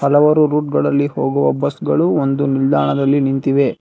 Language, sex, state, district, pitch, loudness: Kannada, male, Karnataka, Bangalore, 135 Hz, -16 LUFS